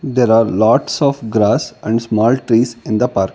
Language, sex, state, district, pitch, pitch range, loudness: English, male, Karnataka, Bangalore, 115 Hz, 110-125 Hz, -15 LUFS